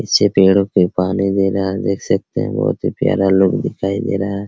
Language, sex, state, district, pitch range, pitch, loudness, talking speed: Hindi, male, Bihar, Araria, 95-100 Hz, 95 Hz, -16 LUFS, 255 wpm